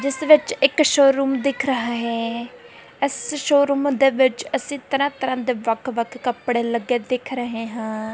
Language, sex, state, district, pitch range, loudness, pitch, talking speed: Punjabi, female, Punjab, Kapurthala, 235-275 Hz, -20 LUFS, 260 Hz, 160 wpm